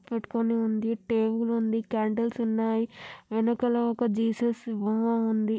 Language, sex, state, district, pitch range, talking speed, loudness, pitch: Telugu, female, Andhra Pradesh, Anantapur, 220-230 Hz, 120 wpm, -27 LUFS, 225 Hz